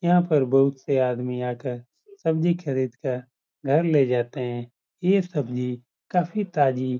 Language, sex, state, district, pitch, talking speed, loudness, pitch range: Hindi, male, Uttar Pradesh, Muzaffarnagar, 135 Hz, 155 wpm, -24 LUFS, 125-165 Hz